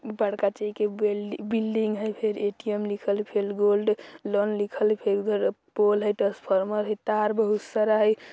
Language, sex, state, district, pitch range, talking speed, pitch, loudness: Bajjika, female, Bihar, Vaishali, 205-215 Hz, 160 wpm, 210 Hz, -26 LUFS